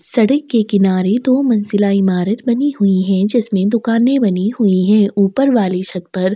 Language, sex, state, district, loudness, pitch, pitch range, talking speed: Hindi, female, Chhattisgarh, Sukma, -14 LUFS, 205 Hz, 195-235 Hz, 170 wpm